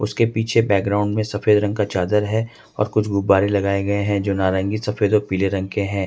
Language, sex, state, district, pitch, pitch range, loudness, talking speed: Hindi, male, Jharkhand, Ranchi, 105 Hz, 100-105 Hz, -20 LUFS, 225 wpm